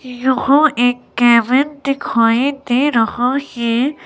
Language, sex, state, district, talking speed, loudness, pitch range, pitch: Hindi, female, Himachal Pradesh, Shimla, 105 wpm, -15 LUFS, 240-275 Hz, 255 Hz